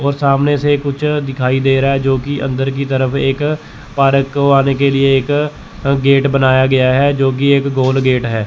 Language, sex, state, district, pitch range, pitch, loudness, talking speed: Hindi, male, Chandigarh, Chandigarh, 135-140 Hz, 135 Hz, -14 LUFS, 215 wpm